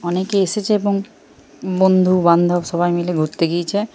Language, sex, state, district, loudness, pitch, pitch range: Bengali, male, Jharkhand, Jamtara, -17 LUFS, 180 Hz, 170-195 Hz